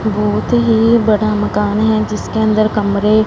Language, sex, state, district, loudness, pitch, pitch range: Hindi, female, Punjab, Fazilka, -14 LUFS, 215 Hz, 210-220 Hz